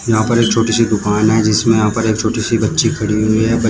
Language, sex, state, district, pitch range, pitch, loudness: Hindi, male, Uttar Pradesh, Shamli, 110-115 Hz, 110 Hz, -14 LUFS